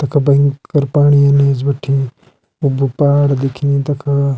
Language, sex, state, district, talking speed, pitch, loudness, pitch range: Garhwali, male, Uttarakhand, Uttarkashi, 135 wpm, 140 Hz, -14 LUFS, 140-145 Hz